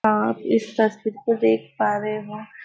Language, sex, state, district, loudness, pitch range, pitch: Hindi, female, Maharashtra, Nagpur, -22 LUFS, 210-220 Hz, 215 Hz